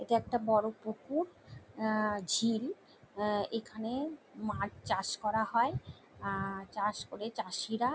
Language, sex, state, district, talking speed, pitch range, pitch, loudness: Bengali, female, West Bengal, Jalpaiguri, 105 wpm, 210-230 Hz, 220 Hz, -35 LUFS